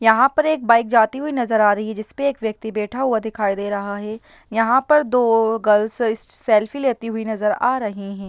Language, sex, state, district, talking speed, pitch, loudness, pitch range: Hindi, female, Bihar, Lakhisarai, 230 wpm, 225 Hz, -19 LUFS, 215-250 Hz